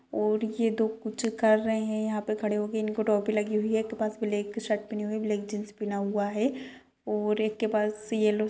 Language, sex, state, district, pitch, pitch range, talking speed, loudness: Kumaoni, female, Uttarakhand, Uttarkashi, 215 Hz, 210-220 Hz, 255 wpm, -29 LUFS